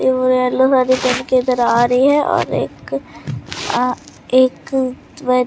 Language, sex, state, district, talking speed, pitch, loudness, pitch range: Hindi, female, Bihar, Katihar, 155 wpm, 255 Hz, -16 LUFS, 250-260 Hz